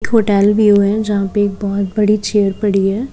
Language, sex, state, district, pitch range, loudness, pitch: Hindi, female, Haryana, Charkhi Dadri, 200-210 Hz, -14 LUFS, 205 Hz